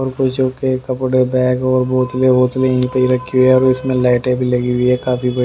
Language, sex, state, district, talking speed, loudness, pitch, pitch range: Hindi, male, Haryana, Rohtak, 240 wpm, -15 LUFS, 130 Hz, 125-130 Hz